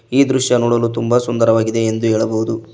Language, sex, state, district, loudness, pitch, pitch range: Kannada, male, Karnataka, Koppal, -16 LUFS, 115 Hz, 110-120 Hz